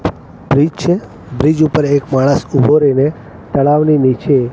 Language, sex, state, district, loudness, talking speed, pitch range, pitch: Gujarati, male, Gujarat, Gandhinagar, -13 LUFS, 135 wpm, 130-150 Hz, 140 Hz